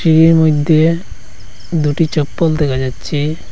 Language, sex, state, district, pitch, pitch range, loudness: Bengali, male, Assam, Hailakandi, 155 Hz, 145-160 Hz, -14 LUFS